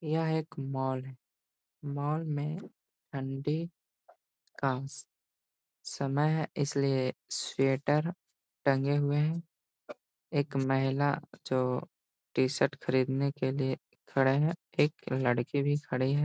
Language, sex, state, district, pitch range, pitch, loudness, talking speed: Hindi, male, Bihar, Gaya, 130-150 Hz, 140 Hz, -32 LUFS, 110 wpm